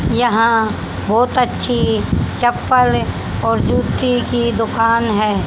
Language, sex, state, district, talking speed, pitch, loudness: Hindi, female, Haryana, Rohtak, 100 wpm, 225 Hz, -16 LUFS